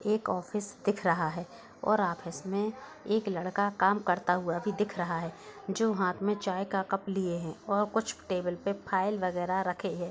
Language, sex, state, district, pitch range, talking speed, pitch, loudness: Hindi, female, Uttar Pradesh, Budaun, 180-205 Hz, 195 wpm, 195 Hz, -31 LUFS